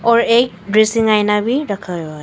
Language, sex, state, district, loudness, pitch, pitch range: Hindi, female, Arunachal Pradesh, Papum Pare, -15 LUFS, 215 Hz, 200-235 Hz